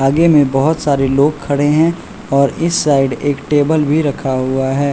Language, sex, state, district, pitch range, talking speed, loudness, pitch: Hindi, male, Bihar, West Champaran, 135-155 Hz, 195 wpm, -14 LUFS, 145 Hz